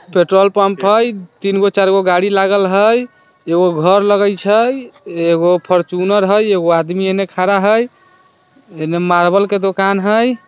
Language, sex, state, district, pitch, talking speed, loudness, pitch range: Hindi, male, Bihar, Sitamarhi, 195 Hz, 155 wpm, -13 LUFS, 180-205 Hz